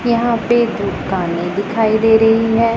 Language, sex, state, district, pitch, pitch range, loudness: Hindi, female, Punjab, Pathankot, 225 Hz, 200-230 Hz, -15 LUFS